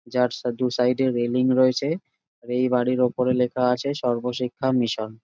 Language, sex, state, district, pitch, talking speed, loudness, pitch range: Bengali, male, West Bengal, Jalpaiguri, 125 Hz, 160 wpm, -23 LUFS, 125-130 Hz